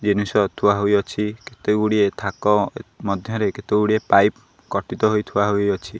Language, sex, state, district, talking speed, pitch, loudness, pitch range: Odia, male, Odisha, Khordha, 140 wpm, 105 Hz, -20 LUFS, 100-105 Hz